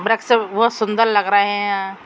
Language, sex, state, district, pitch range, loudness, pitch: Hindi, female, Jharkhand, Sahebganj, 200-225 Hz, -17 LUFS, 210 Hz